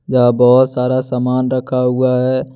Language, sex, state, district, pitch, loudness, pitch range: Hindi, male, Jharkhand, Deoghar, 125 Hz, -14 LUFS, 125-130 Hz